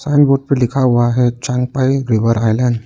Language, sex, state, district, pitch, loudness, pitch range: Hindi, male, Arunachal Pradesh, Lower Dibang Valley, 125 Hz, -15 LUFS, 120-135 Hz